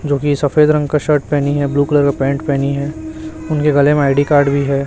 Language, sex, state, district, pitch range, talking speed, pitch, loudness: Hindi, male, Chhattisgarh, Raipur, 140-150 Hz, 260 wpm, 145 Hz, -14 LUFS